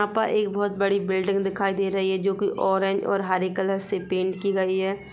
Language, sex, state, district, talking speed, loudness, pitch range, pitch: Hindi, female, Chhattisgarh, Rajnandgaon, 245 wpm, -24 LUFS, 190-200 Hz, 195 Hz